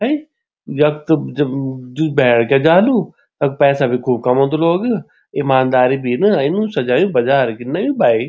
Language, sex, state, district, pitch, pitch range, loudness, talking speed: Garhwali, male, Uttarakhand, Tehri Garhwal, 140 Hz, 130-170 Hz, -15 LUFS, 165 wpm